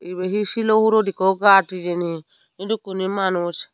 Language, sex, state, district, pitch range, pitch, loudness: Chakma, female, Tripura, Unakoti, 180-210 Hz, 190 Hz, -20 LUFS